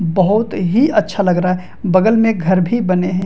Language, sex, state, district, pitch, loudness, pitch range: Hindi, male, Bihar, Madhepura, 185 Hz, -15 LUFS, 180-225 Hz